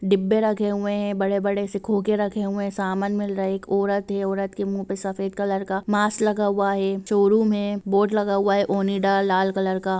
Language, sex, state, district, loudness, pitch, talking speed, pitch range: Hindi, female, Jharkhand, Jamtara, -23 LUFS, 200 Hz, 205 wpm, 195-205 Hz